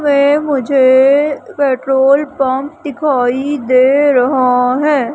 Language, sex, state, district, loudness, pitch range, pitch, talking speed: Hindi, female, Madhya Pradesh, Umaria, -12 LUFS, 260-290 Hz, 275 Hz, 95 wpm